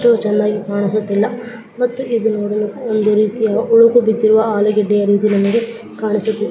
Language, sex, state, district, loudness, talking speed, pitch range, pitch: Kannada, male, Karnataka, Raichur, -15 LUFS, 120 wpm, 210-230 Hz, 215 Hz